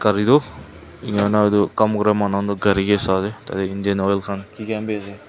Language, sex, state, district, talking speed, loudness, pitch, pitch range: Nagamese, male, Nagaland, Kohima, 240 wpm, -20 LUFS, 100 Hz, 100-105 Hz